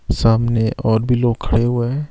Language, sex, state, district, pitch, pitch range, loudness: Hindi, male, Himachal Pradesh, Shimla, 120 Hz, 115-120 Hz, -17 LUFS